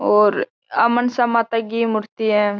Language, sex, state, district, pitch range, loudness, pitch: Marwari, female, Rajasthan, Churu, 210-230 Hz, -19 LUFS, 225 Hz